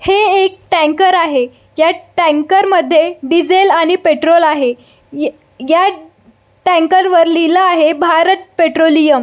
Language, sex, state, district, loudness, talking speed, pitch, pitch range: Marathi, female, Maharashtra, Solapur, -11 LUFS, 125 wpm, 335 Hz, 315-370 Hz